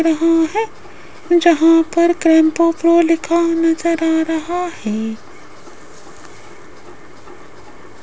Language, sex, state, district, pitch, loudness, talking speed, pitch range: Hindi, female, Rajasthan, Jaipur, 330 Hz, -15 LUFS, 80 wpm, 320-340 Hz